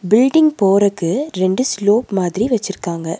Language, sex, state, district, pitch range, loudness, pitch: Tamil, female, Tamil Nadu, Nilgiris, 180-225 Hz, -16 LUFS, 200 Hz